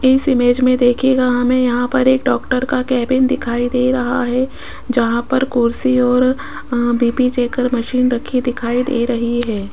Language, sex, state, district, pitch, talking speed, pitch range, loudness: Hindi, female, Rajasthan, Jaipur, 250 Hz, 175 wpm, 240-255 Hz, -16 LUFS